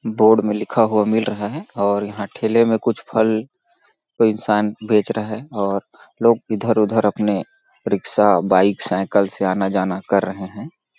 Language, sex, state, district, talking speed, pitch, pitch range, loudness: Hindi, male, Chhattisgarh, Sarguja, 170 wpm, 105 Hz, 100-110 Hz, -19 LUFS